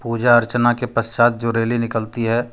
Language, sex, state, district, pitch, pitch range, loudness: Hindi, male, Jharkhand, Deoghar, 115 Hz, 115-120 Hz, -18 LUFS